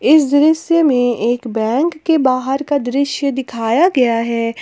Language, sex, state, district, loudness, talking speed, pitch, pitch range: Hindi, female, Jharkhand, Palamu, -15 LUFS, 155 wpm, 265 Hz, 235-300 Hz